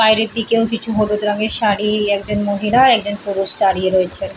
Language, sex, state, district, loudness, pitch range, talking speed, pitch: Bengali, female, West Bengal, Paschim Medinipur, -15 LUFS, 205-225 Hz, 165 wpm, 210 Hz